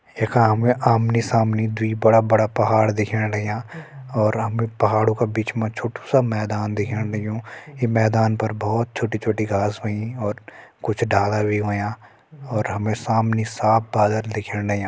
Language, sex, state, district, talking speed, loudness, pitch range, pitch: Hindi, male, Uttarakhand, Uttarkashi, 165 wpm, -21 LUFS, 105-115 Hz, 110 Hz